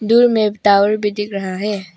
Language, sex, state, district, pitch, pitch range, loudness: Hindi, female, Arunachal Pradesh, Papum Pare, 210 Hz, 200-215 Hz, -16 LUFS